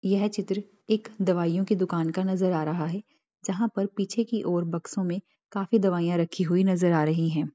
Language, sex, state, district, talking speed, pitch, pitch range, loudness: Hindi, female, Bihar, Bhagalpur, 205 wpm, 190 Hz, 175-205 Hz, -27 LUFS